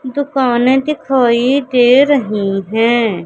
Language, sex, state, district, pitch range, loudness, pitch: Hindi, female, Madhya Pradesh, Katni, 230-270 Hz, -13 LUFS, 250 Hz